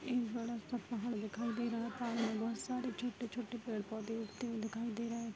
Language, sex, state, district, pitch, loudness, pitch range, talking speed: Hindi, female, Bihar, Vaishali, 235 Hz, -41 LUFS, 225-240 Hz, 190 wpm